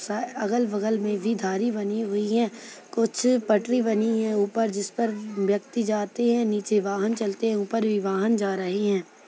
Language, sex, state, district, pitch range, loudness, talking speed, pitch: Hindi, female, Chhattisgarh, Kabirdham, 205-230 Hz, -25 LUFS, 180 wpm, 215 Hz